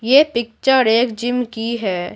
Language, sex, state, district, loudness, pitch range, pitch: Hindi, female, Bihar, Patna, -17 LUFS, 225-250 Hz, 235 Hz